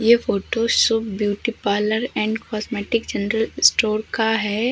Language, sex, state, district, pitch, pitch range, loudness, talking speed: Hindi, female, Uttar Pradesh, Hamirpur, 220 Hz, 215-230 Hz, -20 LUFS, 140 wpm